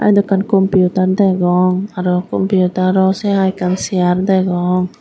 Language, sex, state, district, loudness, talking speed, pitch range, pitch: Chakma, female, Tripura, Dhalai, -14 LUFS, 130 wpm, 180-195 Hz, 185 Hz